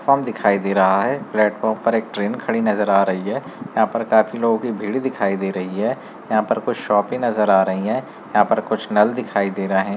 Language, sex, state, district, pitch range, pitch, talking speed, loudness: Hindi, male, West Bengal, Malda, 100-115 Hz, 105 Hz, 240 wpm, -19 LUFS